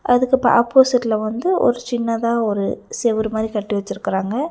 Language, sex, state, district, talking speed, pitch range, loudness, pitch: Tamil, female, Tamil Nadu, Nilgiris, 135 wpm, 215-250 Hz, -18 LUFS, 235 Hz